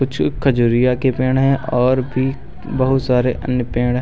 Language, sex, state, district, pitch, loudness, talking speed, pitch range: Hindi, male, Uttar Pradesh, Lucknow, 130 Hz, -17 LUFS, 180 wpm, 125-135 Hz